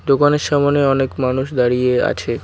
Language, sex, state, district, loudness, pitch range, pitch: Bengali, male, West Bengal, Cooch Behar, -16 LUFS, 130-145 Hz, 135 Hz